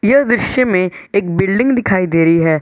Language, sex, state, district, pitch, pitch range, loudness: Hindi, male, Jharkhand, Garhwa, 195 Hz, 175-240 Hz, -14 LUFS